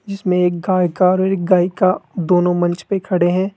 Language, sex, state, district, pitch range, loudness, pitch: Hindi, male, Rajasthan, Jaipur, 175-190 Hz, -17 LUFS, 185 Hz